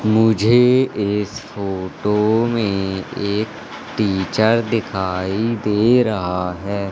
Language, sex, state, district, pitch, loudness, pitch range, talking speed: Hindi, male, Madhya Pradesh, Katni, 105 Hz, -18 LUFS, 95-110 Hz, 85 wpm